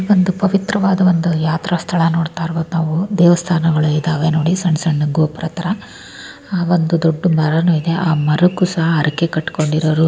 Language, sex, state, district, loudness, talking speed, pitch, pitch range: Kannada, female, Karnataka, Raichur, -16 LUFS, 150 wpm, 165 Hz, 160-180 Hz